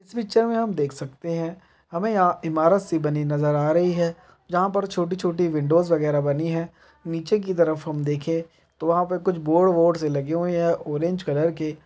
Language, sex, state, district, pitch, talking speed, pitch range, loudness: Hindi, male, Karnataka, Bijapur, 165 Hz, 205 wpm, 155-180 Hz, -23 LUFS